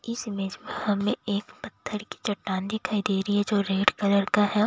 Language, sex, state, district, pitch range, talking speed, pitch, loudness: Hindi, female, Bihar, Katihar, 200-210 Hz, 195 wpm, 205 Hz, -27 LUFS